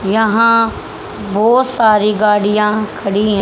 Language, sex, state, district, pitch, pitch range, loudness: Hindi, female, Haryana, Charkhi Dadri, 215 Hz, 210-225 Hz, -13 LUFS